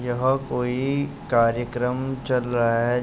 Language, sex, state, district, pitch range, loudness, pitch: Hindi, male, Uttar Pradesh, Jalaun, 120-130 Hz, -23 LUFS, 125 Hz